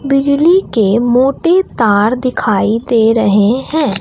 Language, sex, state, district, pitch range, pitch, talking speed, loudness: Hindi, female, Bihar, Katihar, 215-280 Hz, 245 Hz, 120 wpm, -12 LUFS